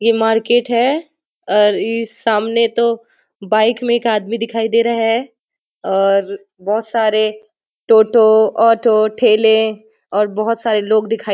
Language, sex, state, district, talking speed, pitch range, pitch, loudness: Hindi, female, Bihar, Muzaffarpur, 145 wpm, 215-230 Hz, 225 Hz, -15 LUFS